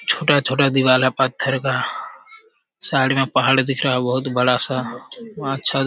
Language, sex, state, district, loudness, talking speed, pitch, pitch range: Hindi, male, Bihar, Jamui, -18 LUFS, 155 wpm, 135 Hz, 130-140 Hz